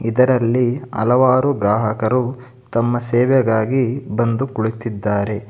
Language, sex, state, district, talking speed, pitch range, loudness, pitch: Kannada, male, Karnataka, Bangalore, 75 wpm, 110-125 Hz, -18 LUFS, 120 Hz